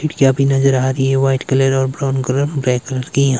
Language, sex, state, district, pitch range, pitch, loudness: Hindi, male, Himachal Pradesh, Shimla, 130-135 Hz, 135 Hz, -16 LUFS